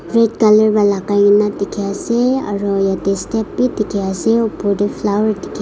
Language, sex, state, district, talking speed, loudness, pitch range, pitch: Nagamese, female, Nagaland, Kohima, 180 wpm, -16 LUFS, 200-220 Hz, 205 Hz